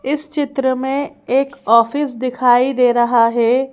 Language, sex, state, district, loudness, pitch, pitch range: Hindi, female, Madhya Pradesh, Bhopal, -16 LUFS, 260 Hz, 240-275 Hz